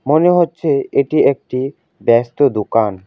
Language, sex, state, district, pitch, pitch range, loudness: Bengali, male, West Bengal, Alipurduar, 140 Hz, 115-175 Hz, -15 LUFS